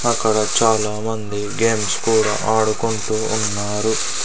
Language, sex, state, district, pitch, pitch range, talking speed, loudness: Telugu, male, Andhra Pradesh, Sri Satya Sai, 110 Hz, 105-110 Hz, 100 wpm, -19 LUFS